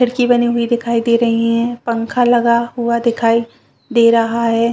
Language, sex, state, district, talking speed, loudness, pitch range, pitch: Hindi, female, Chhattisgarh, Bastar, 175 wpm, -15 LUFS, 230-240 Hz, 235 Hz